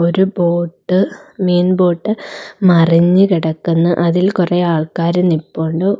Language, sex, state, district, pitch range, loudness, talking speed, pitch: Malayalam, female, Kerala, Kollam, 170-190 Hz, -14 LUFS, 110 wpm, 175 Hz